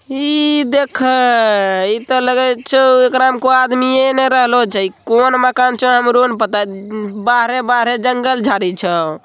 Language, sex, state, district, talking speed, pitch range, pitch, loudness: Hindi, male, Bihar, Begusarai, 175 wpm, 225-260 Hz, 250 Hz, -13 LUFS